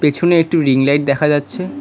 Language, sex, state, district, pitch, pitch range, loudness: Bengali, male, West Bengal, Cooch Behar, 145 Hz, 140-160 Hz, -14 LUFS